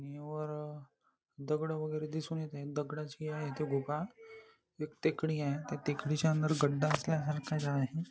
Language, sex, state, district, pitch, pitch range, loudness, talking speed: Marathi, male, Maharashtra, Nagpur, 150 Hz, 150-155 Hz, -36 LUFS, 150 wpm